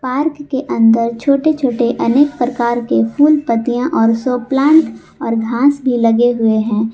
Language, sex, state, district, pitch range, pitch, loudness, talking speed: Hindi, female, Jharkhand, Palamu, 230-280 Hz, 245 Hz, -14 LUFS, 165 wpm